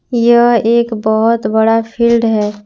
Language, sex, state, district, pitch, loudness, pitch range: Hindi, female, Jharkhand, Palamu, 225 Hz, -12 LUFS, 220-235 Hz